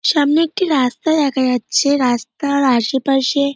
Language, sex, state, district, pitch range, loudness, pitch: Bengali, male, West Bengal, North 24 Parganas, 255-305 Hz, -16 LUFS, 280 Hz